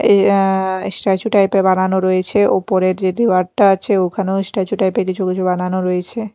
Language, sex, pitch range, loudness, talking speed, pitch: Bengali, female, 185-195 Hz, -16 LUFS, 180 wpm, 190 Hz